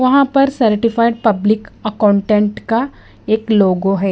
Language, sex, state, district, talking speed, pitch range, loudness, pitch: Hindi, female, Bihar, West Champaran, 130 wpm, 210-230 Hz, -15 LUFS, 220 Hz